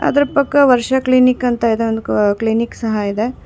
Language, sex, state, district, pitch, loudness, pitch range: Kannada, female, Karnataka, Bangalore, 235 Hz, -15 LUFS, 225-255 Hz